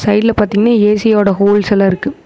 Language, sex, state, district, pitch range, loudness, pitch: Tamil, female, Tamil Nadu, Namakkal, 200-215 Hz, -11 LUFS, 210 Hz